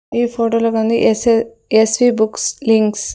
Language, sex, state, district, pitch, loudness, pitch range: Telugu, female, Andhra Pradesh, Sri Satya Sai, 230 Hz, -15 LUFS, 220-230 Hz